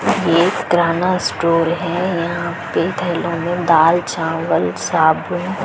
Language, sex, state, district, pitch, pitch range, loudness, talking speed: Hindi, female, Chhattisgarh, Balrampur, 170 Hz, 165-175 Hz, -17 LUFS, 105 wpm